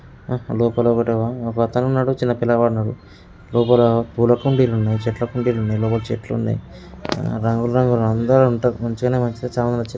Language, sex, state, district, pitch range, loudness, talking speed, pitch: Telugu, male, Telangana, Karimnagar, 115-125 Hz, -19 LUFS, 145 wpm, 120 Hz